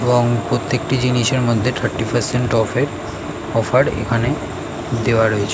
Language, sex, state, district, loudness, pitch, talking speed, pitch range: Bengali, male, West Bengal, North 24 Parganas, -18 LUFS, 120 Hz, 130 wpm, 115-125 Hz